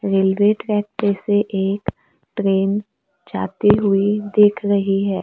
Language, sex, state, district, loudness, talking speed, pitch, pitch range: Hindi, female, Maharashtra, Gondia, -18 LUFS, 125 wpm, 200 Hz, 195-210 Hz